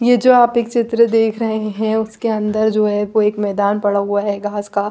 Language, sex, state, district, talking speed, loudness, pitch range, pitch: Hindi, female, Bihar, Patna, 230 wpm, -16 LUFS, 205-225 Hz, 215 Hz